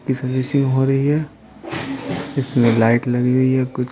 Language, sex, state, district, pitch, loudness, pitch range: Hindi, male, Bihar, Patna, 130 Hz, -18 LUFS, 125-135 Hz